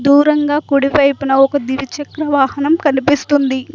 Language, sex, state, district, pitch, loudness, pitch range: Telugu, female, Telangana, Mahabubabad, 285 Hz, -14 LUFS, 270-290 Hz